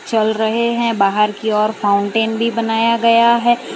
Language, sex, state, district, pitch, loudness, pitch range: Hindi, female, Gujarat, Valsad, 225 Hz, -15 LUFS, 215-230 Hz